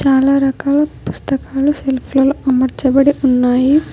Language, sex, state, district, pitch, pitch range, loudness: Telugu, female, Telangana, Hyderabad, 270 Hz, 265-280 Hz, -14 LUFS